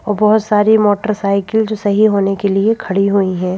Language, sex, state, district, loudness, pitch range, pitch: Hindi, female, Madhya Pradesh, Bhopal, -14 LUFS, 195-215 Hz, 205 Hz